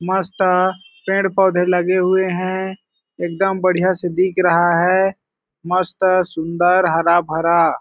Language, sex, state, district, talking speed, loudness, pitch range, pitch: Hindi, male, Chhattisgarh, Balrampur, 130 wpm, -17 LUFS, 175-190 Hz, 185 Hz